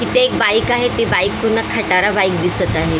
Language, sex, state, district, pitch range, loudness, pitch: Marathi, female, Maharashtra, Mumbai Suburban, 185-245 Hz, -15 LUFS, 215 Hz